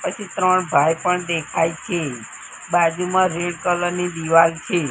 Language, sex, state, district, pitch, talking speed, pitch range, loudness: Gujarati, female, Gujarat, Gandhinagar, 175 Hz, 145 wpm, 165-180 Hz, -20 LUFS